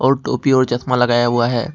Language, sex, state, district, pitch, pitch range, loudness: Hindi, male, Jharkhand, Ranchi, 125 Hz, 120-130 Hz, -16 LUFS